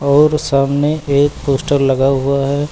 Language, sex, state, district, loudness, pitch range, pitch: Hindi, male, Uttar Pradesh, Lucknow, -14 LUFS, 140-145 Hz, 140 Hz